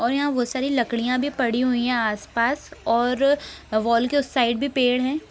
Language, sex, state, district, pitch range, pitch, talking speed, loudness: Hindi, female, Bihar, Begusarai, 235-275 Hz, 250 Hz, 205 wpm, -22 LUFS